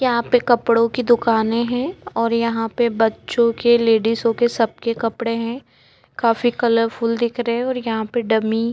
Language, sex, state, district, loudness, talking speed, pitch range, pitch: Hindi, female, Maharashtra, Chandrapur, -19 LUFS, 185 wpm, 230-240 Hz, 230 Hz